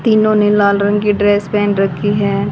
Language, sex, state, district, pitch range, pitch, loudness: Hindi, female, Haryana, Jhajjar, 200-210 Hz, 205 Hz, -13 LUFS